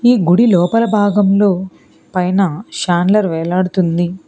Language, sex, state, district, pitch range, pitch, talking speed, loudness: Telugu, female, Telangana, Hyderabad, 175-205 Hz, 185 Hz, 100 wpm, -14 LUFS